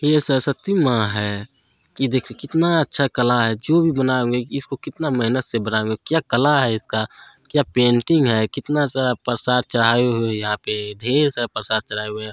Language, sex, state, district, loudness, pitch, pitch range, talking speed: Hindi, male, Bihar, Saharsa, -20 LUFS, 125 Hz, 110-140 Hz, 200 wpm